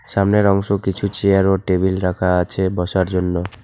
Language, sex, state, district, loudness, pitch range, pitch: Bengali, male, West Bengal, Alipurduar, -18 LUFS, 90-100 Hz, 95 Hz